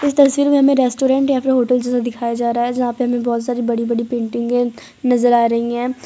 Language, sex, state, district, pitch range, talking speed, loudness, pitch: Hindi, female, Gujarat, Valsad, 235-260 Hz, 235 wpm, -17 LUFS, 245 Hz